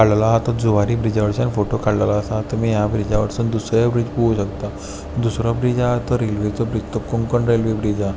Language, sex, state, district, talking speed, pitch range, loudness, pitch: Konkani, male, Goa, North and South Goa, 215 wpm, 105-115 Hz, -19 LUFS, 110 Hz